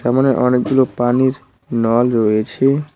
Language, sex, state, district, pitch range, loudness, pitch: Bengali, male, West Bengal, Cooch Behar, 120-135 Hz, -16 LUFS, 125 Hz